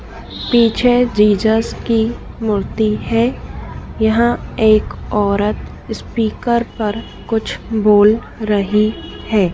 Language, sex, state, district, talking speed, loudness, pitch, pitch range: Hindi, female, Madhya Pradesh, Dhar, 90 wpm, -16 LUFS, 220 Hz, 210-230 Hz